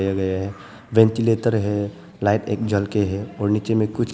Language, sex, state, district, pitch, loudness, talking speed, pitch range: Hindi, male, Arunachal Pradesh, Papum Pare, 105 Hz, -21 LUFS, 160 wpm, 100-110 Hz